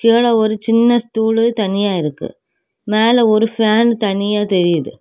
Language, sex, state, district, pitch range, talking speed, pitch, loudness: Tamil, female, Tamil Nadu, Kanyakumari, 205-230 Hz, 130 wpm, 220 Hz, -15 LUFS